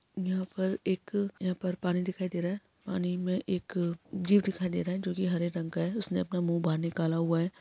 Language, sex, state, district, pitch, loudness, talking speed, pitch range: Hindi, male, Uttarakhand, Tehri Garhwal, 185 Hz, -32 LUFS, 235 wpm, 175-190 Hz